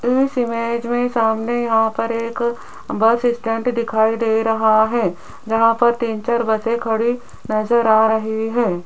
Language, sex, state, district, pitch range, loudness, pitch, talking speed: Hindi, female, Rajasthan, Jaipur, 220-235 Hz, -18 LUFS, 230 Hz, 150 wpm